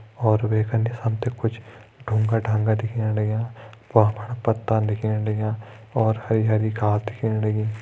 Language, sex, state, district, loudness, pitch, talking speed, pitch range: Hindi, male, Uttarakhand, Tehri Garhwal, -23 LUFS, 110 Hz, 155 wpm, 110-115 Hz